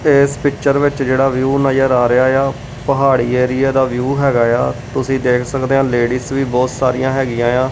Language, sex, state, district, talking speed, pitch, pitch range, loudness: Punjabi, male, Punjab, Kapurthala, 200 wpm, 130 Hz, 125-135 Hz, -15 LUFS